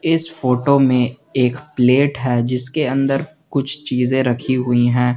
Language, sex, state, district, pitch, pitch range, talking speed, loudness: Hindi, male, Jharkhand, Garhwa, 130 Hz, 125-140 Hz, 150 wpm, -17 LUFS